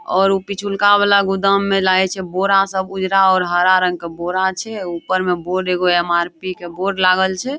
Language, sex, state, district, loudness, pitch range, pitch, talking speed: Maithili, female, Bihar, Madhepura, -16 LUFS, 180-195 Hz, 190 Hz, 205 wpm